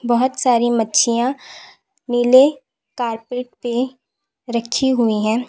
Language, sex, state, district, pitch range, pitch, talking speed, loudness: Hindi, female, Uttar Pradesh, Lalitpur, 235-260 Hz, 245 Hz, 100 wpm, -18 LUFS